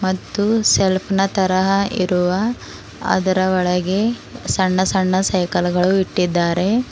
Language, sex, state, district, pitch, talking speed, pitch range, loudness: Kannada, female, Karnataka, Bidar, 185 Hz, 105 wpm, 185-195 Hz, -18 LUFS